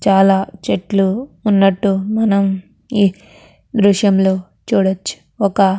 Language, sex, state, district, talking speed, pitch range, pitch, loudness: Telugu, female, Andhra Pradesh, Krishna, 95 wpm, 190-205 Hz, 195 Hz, -16 LUFS